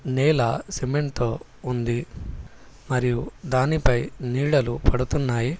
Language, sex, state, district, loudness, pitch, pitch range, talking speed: Telugu, male, Telangana, Hyderabad, -24 LUFS, 130 Hz, 120-145 Hz, 85 wpm